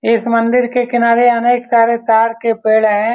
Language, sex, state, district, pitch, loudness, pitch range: Hindi, male, Bihar, Saran, 230 Hz, -13 LUFS, 230-240 Hz